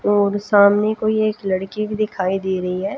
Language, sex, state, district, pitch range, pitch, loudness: Hindi, female, Haryana, Jhajjar, 190-215 Hz, 205 Hz, -18 LUFS